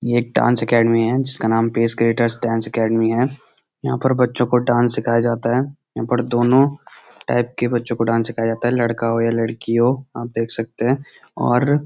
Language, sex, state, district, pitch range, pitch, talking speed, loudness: Hindi, male, Uttarakhand, Uttarkashi, 115-125 Hz, 120 Hz, 200 wpm, -19 LUFS